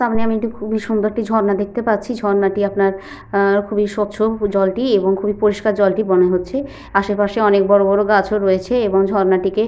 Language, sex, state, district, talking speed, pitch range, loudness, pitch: Bengali, female, West Bengal, Paschim Medinipur, 185 wpm, 195-220 Hz, -17 LUFS, 205 Hz